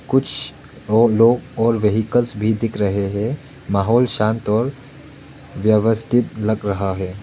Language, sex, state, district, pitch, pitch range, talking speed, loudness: Hindi, male, Arunachal Pradesh, Lower Dibang Valley, 110 Hz, 105-120 Hz, 135 wpm, -18 LUFS